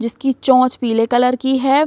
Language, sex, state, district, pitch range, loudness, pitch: Hindi, female, Uttar Pradesh, Gorakhpur, 240-265 Hz, -16 LUFS, 255 Hz